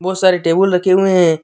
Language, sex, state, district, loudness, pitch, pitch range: Hindi, male, Jharkhand, Deoghar, -13 LUFS, 185 Hz, 175-190 Hz